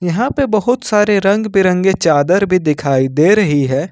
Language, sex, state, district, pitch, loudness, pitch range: Hindi, male, Jharkhand, Ranchi, 190 Hz, -13 LUFS, 150-210 Hz